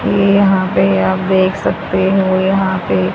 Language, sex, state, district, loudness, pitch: Hindi, female, Haryana, Rohtak, -13 LUFS, 190 Hz